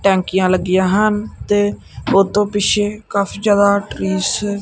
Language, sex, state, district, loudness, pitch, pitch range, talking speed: Punjabi, male, Punjab, Kapurthala, -16 LUFS, 200 Hz, 190-205 Hz, 130 wpm